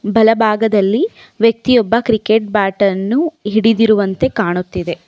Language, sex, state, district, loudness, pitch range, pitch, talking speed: Kannada, female, Karnataka, Bangalore, -14 LUFS, 200-230 Hz, 220 Hz, 85 wpm